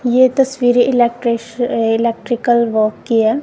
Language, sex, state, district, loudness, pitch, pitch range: Hindi, female, Punjab, Kapurthala, -15 LUFS, 240 Hz, 230-245 Hz